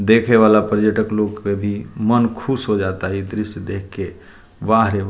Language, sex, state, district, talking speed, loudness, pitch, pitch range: Bhojpuri, male, Bihar, Muzaffarpur, 200 wpm, -18 LUFS, 105 Hz, 100-110 Hz